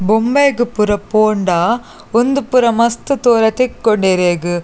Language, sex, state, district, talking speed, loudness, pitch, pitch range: Tulu, female, Karnataka, Dakshina Kannada, 115 wpm, -14 LUFS, 225 Hz, 205-245 Hz